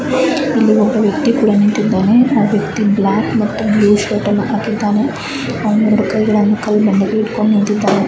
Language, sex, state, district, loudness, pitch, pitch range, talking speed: Kannada, female, Karnataka, Chamarajanagar, -14 LUFS, 215 Hz, 205-220 Hz, 150 wpm